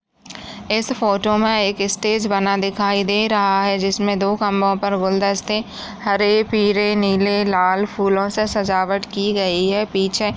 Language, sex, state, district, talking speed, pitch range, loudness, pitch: Hindi, female, Uttar Pradesh, Budaun, 160 wpm, 195-210 Hz, -18 LUFS, 200 Hz